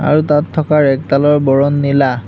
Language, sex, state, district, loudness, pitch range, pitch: Assamese, male, Assam, Hailakandi, -13 LUFS, 140-150 Hz, 145 Hz